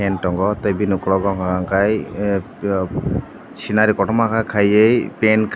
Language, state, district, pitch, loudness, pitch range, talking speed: Kokborok, Tripura, Dhalai, 100 Hz, -18 LUFS, 95-110 Hz, 130 wpm